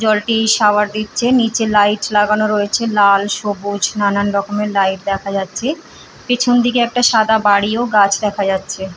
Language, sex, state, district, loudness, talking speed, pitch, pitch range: Bengali, female, West Bengal, Purulia, -15 LUFS, 145 wpm, 210 Hz, 200-225 Hz